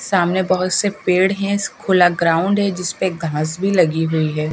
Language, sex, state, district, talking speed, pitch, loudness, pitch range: Hindi, female, Bihar, Katihar, 185 wpm, 180 Hz, -17 LUFS, 165-190 Hz